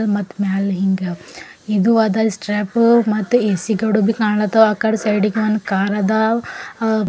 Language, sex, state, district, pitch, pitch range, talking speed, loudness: Kannada, female, Karnataka, Bidar, 215 Hz, 205-220 Hz, 150 wpm, -17 LUFS